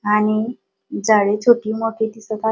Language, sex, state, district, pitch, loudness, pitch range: Marathi, female, Maharashtra, Dhule, 220 Hz, -18 LUFS, 210-225 Hz